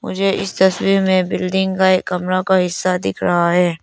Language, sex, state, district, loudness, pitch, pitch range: Hindi, female, Arunachal Pradesh, Lower Dibang Valley, -16 LUFS, 185 Hz, 180-190 Hz